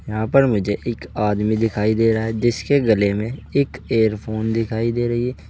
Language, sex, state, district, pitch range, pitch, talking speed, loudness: Hindi, male, Uttar Pradesh, Saharanpur, 105-120 Hz, 110 Hz, 195 wpm, -20 LUFS